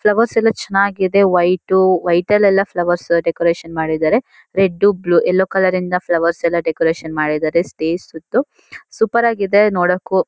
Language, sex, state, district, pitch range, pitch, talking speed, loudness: Kannada, female, Karnataka, Shimoga, 170-200 Hz, 180 Hz, 130 wpm, -16 LUFS